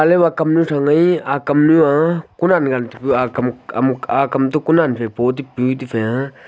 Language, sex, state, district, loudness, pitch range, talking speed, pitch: Wancho, male, Arunachal Pradesh, Longding, -16 LUFS, 125-160 Hz, 165 wpm, 140 Hz